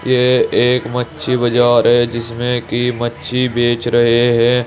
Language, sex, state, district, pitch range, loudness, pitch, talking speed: Hindi, male, Uttar Pradesh, Saharanpur, 120-125 Hz, -15 LUFS, 120 Hz, 140 wpm